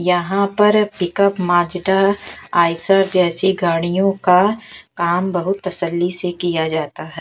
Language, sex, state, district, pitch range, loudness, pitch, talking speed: Hindi, female, Haryana, Jhajjar, 175-195 Hz, -17 LUFS, 180 Hz, 125 wpm